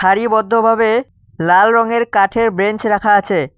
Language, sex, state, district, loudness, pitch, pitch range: Bengali, male, West Bengal, Cooch Behar, -14 LUFS, 220 Hz, 200-230 Hz